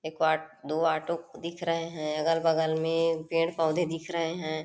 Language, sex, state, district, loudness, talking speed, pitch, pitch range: Hindi, female, Chhattisgarh, Korba, -29 LUFS, 165 wpm, 165 Hz, 160-165 Hz